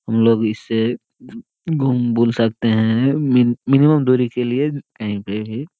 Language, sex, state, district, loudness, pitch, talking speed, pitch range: Hindi, male, Bihar, Jamui, -18 LUFS, 120 Hz, 125 wpm, 115-140 Hz